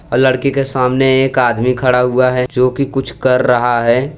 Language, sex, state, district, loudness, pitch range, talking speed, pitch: Hindi, male, Gujarat, Valsad, -13 LUFS, 125-135 Hz, 200 wpm, 130 Hz